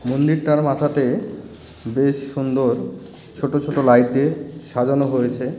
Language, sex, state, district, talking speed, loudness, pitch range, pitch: Bengali, male, West Bengal, Cooch Behar, 120 wpm, -19 LUFS, 125-145 Hz, 140 Hz